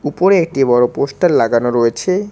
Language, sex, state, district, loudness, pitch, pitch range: Bengali, male, West Bengal, Cooch Behar, -14 LUFS, 140 Hz, 120-180 Hz